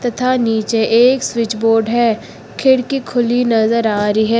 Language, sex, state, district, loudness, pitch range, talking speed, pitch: Hindi, female, Uttar Pradesh, Lucknow, -15 LUFS, 225-245 Hz, 165 wpm, 230 Hz